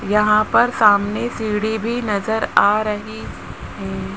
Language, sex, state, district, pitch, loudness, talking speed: Hindi, male, Rajasthan, Jaipur, 210 Hz, -18 LUFS, 130 wpm